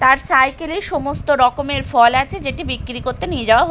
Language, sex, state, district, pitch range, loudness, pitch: Bengali, female, Bihar, Katihar, 260-290 Hz, -17 LUFS, 270 Hz